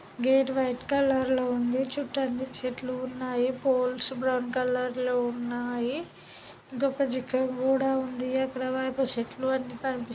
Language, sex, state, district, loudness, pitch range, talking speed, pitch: Telugu, male, Andhra Pradesh, Guntur, -28 LUFS, 250-265 Hz, 105 wpm, 255 Hz